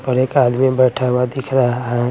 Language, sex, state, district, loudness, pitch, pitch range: Hindi, male, Bihar, Patna, -16 LUFS, 125 Hz, 125-130 Hz